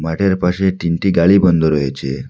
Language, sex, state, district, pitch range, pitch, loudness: Bengali, male, Assam, Hailakandi, 80-95 Hz, 85 Hz, -15 LUFS